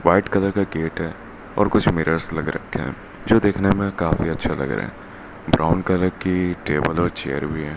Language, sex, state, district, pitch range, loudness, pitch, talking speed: Hindi, male, Rajasthan, Bikaner, 80-95 Hz, -21 LUFS, 85 Hz, 210 wpm